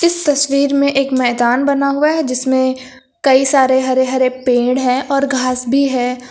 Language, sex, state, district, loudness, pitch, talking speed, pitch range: Hindi, female, Uttar Pradesh, Lucknow, -14 LUFS, 260 Hz, 180 wpm, 255-280 Hz